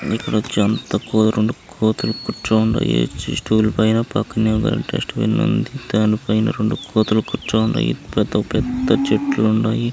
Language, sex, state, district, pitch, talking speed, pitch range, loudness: Telugu, male, Andhra Pradesh, Chittoor, 110 Hz, 115 wpm, 105-110 Hz, -19 LUFS